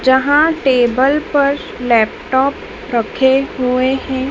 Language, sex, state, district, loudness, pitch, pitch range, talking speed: Hindi, female, Madhya Pradesh, Dhar, -15 LUFS, 265 Hz, 250-280 Hz, 95 wpm